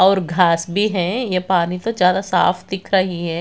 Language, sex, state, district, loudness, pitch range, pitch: Hindi, female, Bihar, Kaimur, -18 LUFS, 175-195 Hz, 185 Hz